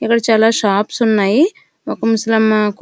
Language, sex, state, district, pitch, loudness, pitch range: Telugu, female, Andhra Pradesh, Srikakulam, 220 Hz, -14 LUFS, 215-230 Hz